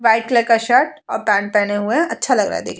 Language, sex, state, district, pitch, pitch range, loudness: Hindi, female, Bihar, Vaishali, 230 Hz, 210-250 Hz, -17 LUFS